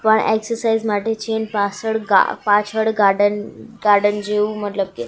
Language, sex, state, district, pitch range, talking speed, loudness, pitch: Gujarati, female, Gujarat, Gandhinagar, 205-220 Hz, 140 wpm, -18 LUFS, 210 Hz